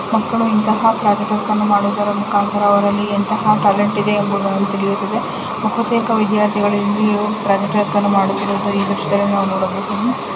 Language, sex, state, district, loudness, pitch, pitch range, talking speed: Kannada, female, Karnataka, Chamarajanagar, -16 LUFS, 205 Hz, 200-215 Hz, 120 wpm